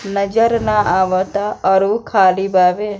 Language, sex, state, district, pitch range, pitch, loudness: Bhojpuri, female, Bihar, East Champaran, 190-210 Hz, 200 Hz, -15 LUFS